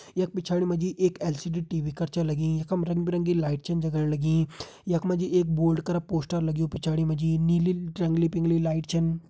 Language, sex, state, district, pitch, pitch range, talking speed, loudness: Hindi, male, Uttarakhand, Uttarkashi, 165 Hz, 160-175 Hz, 195 wpm, -27 LUFS